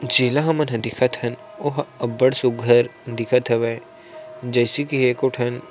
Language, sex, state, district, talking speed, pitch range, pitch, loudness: Chhattisgarhi, male, Chhattisgarh, Sarguja, 155 wpm, 120-145 Hz, 125 Hz, -20 LUFS